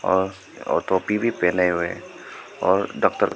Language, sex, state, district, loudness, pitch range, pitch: Hindi, male, Arunachal Pradesh, Papum Pare, -22 LUFS, 90-95 Hz, 95 Hz